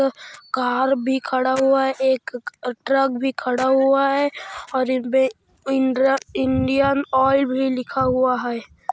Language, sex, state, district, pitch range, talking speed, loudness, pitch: Hindi, male, Chhattisgarh, Kabirdham, 255-270 Hz, 115 wpm, -20 LUFS, 265 Hz